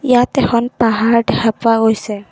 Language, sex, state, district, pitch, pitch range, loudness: Assamese, female, Assam, Kamrup Metropolitan, 230 Hz, 220-245 Hz, -14 LUFS